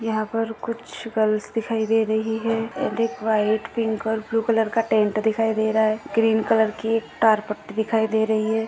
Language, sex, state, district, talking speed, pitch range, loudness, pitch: Hindi, female, Maharashtra, Aurangabad, 195 wpm, 220-225 Hz, -22 LUFS, 220 Hz